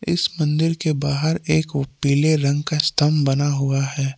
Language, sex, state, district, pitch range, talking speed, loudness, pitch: Hindi, male, Jharkhand, Palamu, 140-155 Hz, 185 wpm, -20 LUFS, 150 Hz